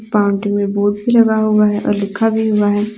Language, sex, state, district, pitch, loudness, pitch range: Hindi, female, Jharkhand, Deoghar, 210 Hz, -15 LUFS, 205-220 Hz